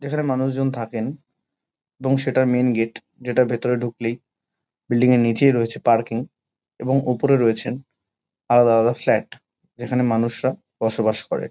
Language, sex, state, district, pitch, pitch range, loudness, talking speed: Bengali, male, West Bengal, Kolkata, 125 Hz, 115-130 Hz, -21 LUFS, 130 wpm